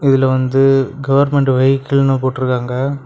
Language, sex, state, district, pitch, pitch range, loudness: Tamil, male, Tamil Nadu, Kanyakumari, 135 Hz, 130-135 Hz, -14 LUFS